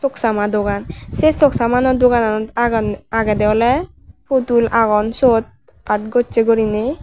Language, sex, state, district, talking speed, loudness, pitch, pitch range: Chakma, female, Tripura, Unakoti, 120 wpm, -16 LUFS, 230 Hz, 215-250 Hz